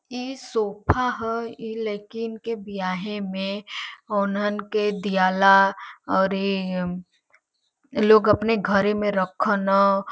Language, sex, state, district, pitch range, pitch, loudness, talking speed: Bhojpuri, female, Uttar Pradesh, Varanasi, 195-225 Hz, 205 Hz, -23 LUFS, 115 wpm